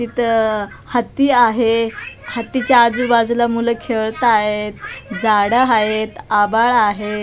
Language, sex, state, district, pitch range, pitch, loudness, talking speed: Marathi, female, Maharashtra, Mumbai Suburban, 210-240 Hz, 230 Hz, -16 LUFS, 100 wpm